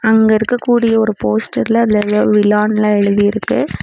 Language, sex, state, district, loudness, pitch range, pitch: Tamil, female, Tamil Nadu, Namakkal, -13 LUFS, 210-225 Hz, 215 Hz